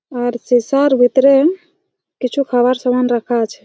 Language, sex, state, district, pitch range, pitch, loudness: Bengali, female, West Bengal, Jhargram, 245-285 Hz, 255 Hz, -15 LUFS